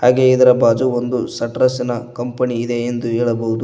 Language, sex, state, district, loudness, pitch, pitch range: Kannada, male, Karnataka, Koppal, -17 LUFS, 120 Hz, 120-125 Hz